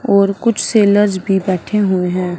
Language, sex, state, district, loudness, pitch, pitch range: Hindi, female, Punjab, Fazilka, -14 LUFS, 200 Hz, 185-205 Hz